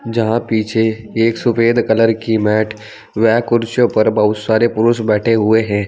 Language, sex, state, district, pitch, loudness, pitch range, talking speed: Hindi, male, Uttar Pradesh, Saharanpur, 110 Hz, -15 LUFS, 110-115 Hz, 165 wpm